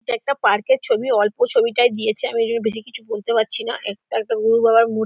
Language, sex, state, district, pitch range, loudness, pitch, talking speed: Bengali, female, West Bengal, Dakshin Dinajpur, 220-250 Hz, -19 LUFS, 230 Hz, 215 wpm